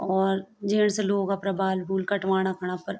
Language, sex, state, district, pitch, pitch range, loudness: Garhwali, female, Uttarakhand, Tehri Garhwal, 195 Hz, 190-200 Hz, -26 LUFS